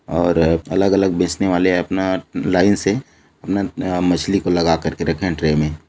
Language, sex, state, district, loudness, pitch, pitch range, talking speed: Hindi, male, Chhattisgarh, Bilaspur, -18 LUFS, 90 Hz, 80-95 Hz, 175 wpm